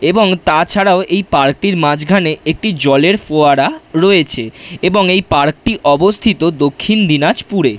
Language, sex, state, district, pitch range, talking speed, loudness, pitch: Bengali, male, West Bengal, Dakshin Dinajpur, 145-195 Hz, 140 wpm, -12 LUFS, 175 Hz